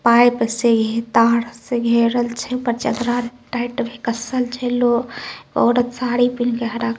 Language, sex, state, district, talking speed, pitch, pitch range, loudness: Maithili, female, Bihar, Samastipur, 135 wpm, 240 Hz, 235-245 Hz, -19 LUFS